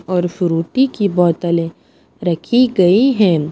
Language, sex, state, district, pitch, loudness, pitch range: Hindi, female, Punjab, Pathankot, 180 Hz, -15 LUFS, 170-210 Hz